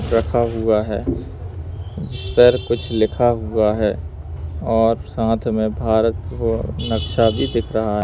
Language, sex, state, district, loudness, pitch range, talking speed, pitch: Hindi, male, Madhya Pradesh, Bhopal, -19 LUFS, 90-115 Hz, 135 wpm, 110 Hz